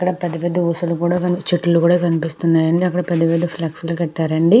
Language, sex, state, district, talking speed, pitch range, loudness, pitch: Telugu, female, Andhra Pradesh, Krishna, 195 wpm, 165-175 Hz, -18 LUFS, 170 Hz